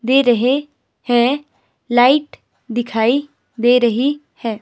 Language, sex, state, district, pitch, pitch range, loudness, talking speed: Hindi, female, Himachal Pradesh, Shimla, 245 Hz, 240-275 Hz, -16 LUFS, 105 wpm